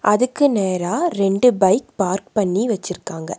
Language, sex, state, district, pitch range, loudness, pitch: Tamil, female, Tamil Nadu, Nilgiris, 185-230 Hz, -19 LUFS, 195 Hz